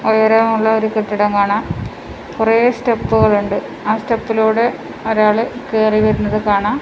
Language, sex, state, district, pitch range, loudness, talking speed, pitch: Malayalam, female, Kerala, Kasaragod, 215-225 Hz, -15 LUFS, 115 wpm, 220 Hz